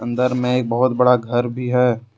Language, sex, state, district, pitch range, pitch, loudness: Hindi, male, Jharkhand, Deoghar, 120-125 Hz, 125 Hz, -18 LUFS